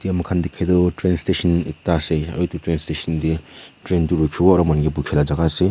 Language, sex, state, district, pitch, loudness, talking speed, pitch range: Nagamese, male, Nagaland, Kohima, 85 Hz, -19 LUFS, 230 wpm, 80-90 Hz